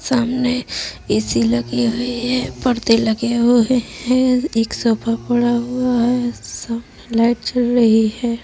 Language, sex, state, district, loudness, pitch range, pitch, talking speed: Hindi, female, Uttar Pradesh, Budaun, -18 LUFS, 230-245 Hz, 235 Hz, 135 wpm